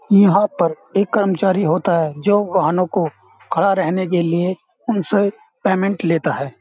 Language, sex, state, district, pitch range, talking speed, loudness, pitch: Hindi, male, Uttar Pradesh, Jyotiba Phule Nagar, 165-200 Hz, 155 wpm, -18 LUFS, 185 Hz